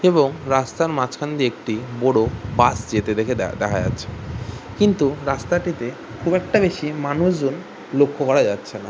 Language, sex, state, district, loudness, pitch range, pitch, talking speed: Bengali, male, West Bengal, Jhargram, -21 LUFS, 115-160 Hz, 135 Hz, 140 wpm